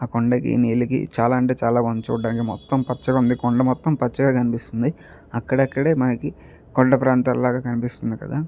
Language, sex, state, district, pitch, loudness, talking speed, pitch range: Telugu, male, Andhra Pradesh, Chittoor, 125 Hz, -21 LUFS, 150 wpm, 120-130 Hz